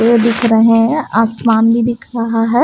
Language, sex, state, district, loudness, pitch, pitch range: Hindi, female, Punjab, Kapurthala, -13 LUFS, 230 Hz, 225-235 Hz